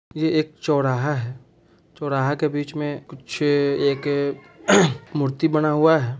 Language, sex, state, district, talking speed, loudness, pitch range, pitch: Bhojpuri, male, Bihar, Saran, 135 wpm, -21 LUFS, 140-155 Hz, 145 Hz